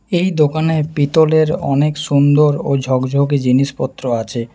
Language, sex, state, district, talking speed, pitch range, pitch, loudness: Bengali, male, West Bengal, Alipurduar, 120 wpm, 135-155 Hz, 145 Hz, -15 LUFS